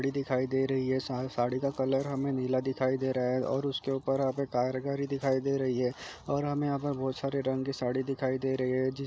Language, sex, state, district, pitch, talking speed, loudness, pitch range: Hindi, male, Chhattisgarh, Jashpur, 135 Hz, 250 wpm, -31 LUFS, 130-135 Hz